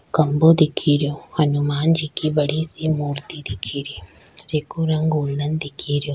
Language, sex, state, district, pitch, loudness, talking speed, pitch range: Rajasthani, female, Rajasthan, Churu, 150 Hz, -21 LUFS, 165 wpm, 145-155 Hz